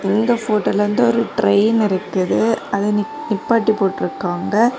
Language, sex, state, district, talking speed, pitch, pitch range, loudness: Tamil, female, Tamil Nadu, Kanyakumari, 115 wpm, 215 Hz, 200-230 Hz, -18 LUFS